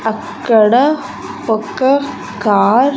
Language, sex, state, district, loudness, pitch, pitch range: Telugu, female, Andhra Pradesh, Sri Satya Sai, -14 LUFS, 235 Hz, 215-265 Hz